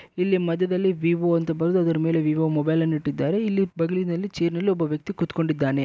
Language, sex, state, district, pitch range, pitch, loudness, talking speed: Kannada, male, Karnataka, Bellary, 160-185 Hz, 170 Hz, -23 LUFS, 175 wpm